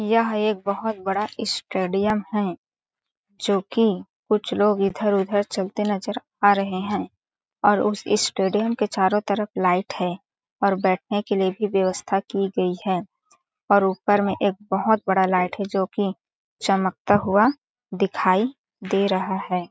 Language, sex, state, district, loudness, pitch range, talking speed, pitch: Hindi, female, Chhattisgarh, Balrampur, -22 LUFS, 190-210 Hz, 145 wpm, 200 Hz